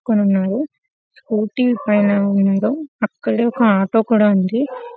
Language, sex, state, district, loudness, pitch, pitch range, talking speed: Telugu, female, Telangana, Karimnagar, -17 LUFS, 220 Hz, 205-255 Hz, 145 wpm